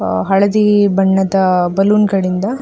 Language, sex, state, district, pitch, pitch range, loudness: Kannada, female, Karnataka, Dakshina Kannada, 195 Hz, 190-205 Hz, -13 LUFS